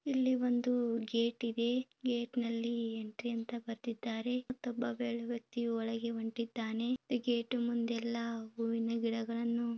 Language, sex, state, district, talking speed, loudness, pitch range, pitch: Kannada, female, Karnataka, Bellary, 130 wpm, -36 LUFS, 230-245 Hz, 235 Hz